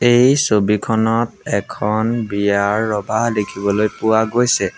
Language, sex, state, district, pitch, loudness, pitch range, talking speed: Assamese, male, Assam, Sonitpur, 110 Hz, -17 LUFS, 105-115 Hz, 100 wpm